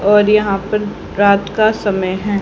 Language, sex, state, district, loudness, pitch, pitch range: Hindi, female, Haryana, Charkhi Dadri, -15 LUFS, 205 Hz, 200-210 Hz